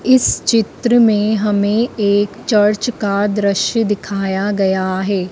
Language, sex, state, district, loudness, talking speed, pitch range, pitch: Hindi, female, Madhya Pradesh, Dhar, -15 LUFS, 125 wpm, 200-220 Hz, 205 Hz